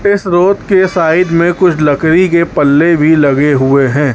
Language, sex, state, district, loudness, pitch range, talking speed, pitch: Hindi, male, Chhattisgarh, Raipur, -10 LUFS, 145-180 Hz, 185 wpm, 165 Hz